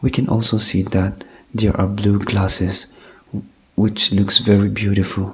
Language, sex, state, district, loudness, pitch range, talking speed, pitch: English, male, Nagaland, Kohima, -18 LUFS, 95-110 Hz, 145 wpm, 100 Hz